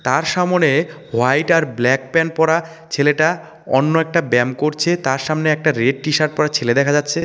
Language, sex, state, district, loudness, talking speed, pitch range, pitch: Bengali, male, West Bengal, Cooch Behar, -17 LUFS, 175 wpm, 135-165 Hz, 155 Hz